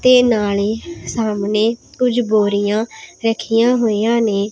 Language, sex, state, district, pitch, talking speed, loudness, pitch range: Punjabi, female, Punjab, Pathankot, 225 Hz, 105 wpm, -17 LUFS, 210-235 Hz